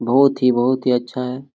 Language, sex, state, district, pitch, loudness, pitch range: Hindi, male, Jharkhand, Jamtara, 125 Hz, -18 LUFS, 125-130 Hz